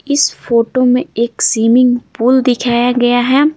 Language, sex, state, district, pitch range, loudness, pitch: Hindi, female, Bihar, Patna, 240-260 Hz, -12 LUFS, 250 Hz